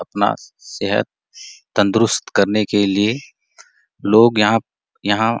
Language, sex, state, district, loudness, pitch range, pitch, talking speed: Hindi, male, Chhattisgarh, Bastar, -17 LUFS, 100-115 Hz, 105 Hz, 120 wpm